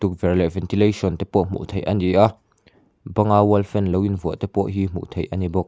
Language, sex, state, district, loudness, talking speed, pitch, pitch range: Mizo, male, Mizoram, Aizawl, -21 LUFS, 240 wpm, 95 Hz, 90-100 Hz